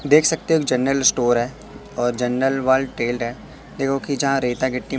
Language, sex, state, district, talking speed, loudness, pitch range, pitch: Hindi, male, Madhya Pradesh, Katni, 190 wpm, -20 LUFS, 125-135 Hz, 130 Hz